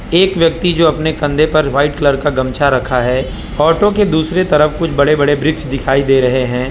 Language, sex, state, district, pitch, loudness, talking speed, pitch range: Hindi, male, Gujarat, Valsad, 150 Hz, -13 LUFS, 215 wpm, 135-160 Hz